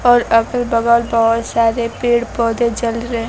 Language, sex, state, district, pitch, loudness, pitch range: Hindi, female, Bihar, Kaimur, 235 Hz, -15 LUFS, 230-240 Hz